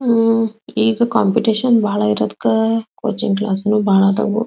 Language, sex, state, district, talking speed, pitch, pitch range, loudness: Kannada, female, Karnataka, Belgaum, 120 wpm, 220 Hz, 205-225 Hz, -16 LUFS